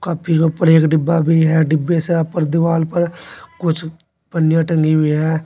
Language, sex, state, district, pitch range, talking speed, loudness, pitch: Hindi, male, Uttar Pradesh, Saharanpur, 160-170 Hz, 200 wpm, -16 LUFS, 165 Hz